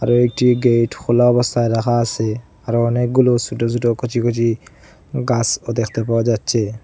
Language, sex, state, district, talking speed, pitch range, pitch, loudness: Bengali, male, Assam, Hailakandi, 140 wpm, 115-120 Hz, 120 Hz, -17 LUFS